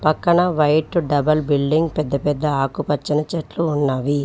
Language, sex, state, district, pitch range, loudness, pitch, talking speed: Telugu, female, Telangana, Mahabubabad, 145-160 Hz, -19 LUFS, 150 Hz, 125 wpm